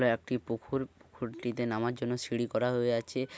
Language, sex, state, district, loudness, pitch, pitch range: Bengali, male, West Bengal, Paschim Medinipur, -33 LUFS, 120 Hz, 115-125 Hz